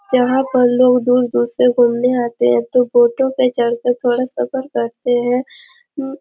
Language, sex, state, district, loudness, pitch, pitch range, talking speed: Hindi, female, Chhattisgarh, Korba, -15 LUFS, 245 Hz, 240-255 Hz, 165 wpm